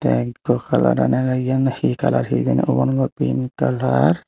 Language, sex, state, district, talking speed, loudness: Chakma, male, Tripura, Unakoti, 140 wpm, -19 LUFS